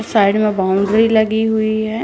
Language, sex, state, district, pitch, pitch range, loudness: Hindi, female, Uttarakhand, Uttarkashi, 215 Hz, 205-220 Hz, -15 LUFS